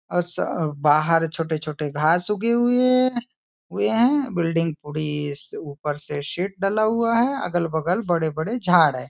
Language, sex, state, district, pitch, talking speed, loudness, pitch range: Hindi, male, Maharashtra, Nagpur, 170 Hz, 160 wpm, -21 LUFS, 155-230 Hz